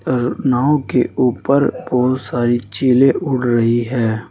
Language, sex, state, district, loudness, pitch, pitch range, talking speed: Hindi, male, Uttar Pradesh, Saharanpur, -16 LUFS, 125 Hz, 120-130 Hz, 140 wpm